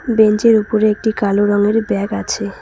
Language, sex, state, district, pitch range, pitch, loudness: Bengali, female, West Bengal, Cooch Behar, 205-220 Hz, 215 Hz, -15 LUFS